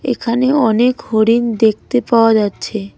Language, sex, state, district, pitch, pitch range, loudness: Bengali, female, West Bengal, Cooch Behar, 230 Hz, 220-245 Hz, -14 LUFS